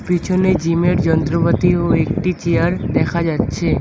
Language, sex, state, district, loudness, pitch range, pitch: Bengali, male, West Bengal, Alipurduar, -17 LUFS, 165-180 Hz, 170 Hz